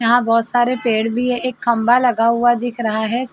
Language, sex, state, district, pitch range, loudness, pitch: Hindi, female, Uttar Pradesh, Jalaun, 230-245 Hz, -17 LUFS, 240 Hz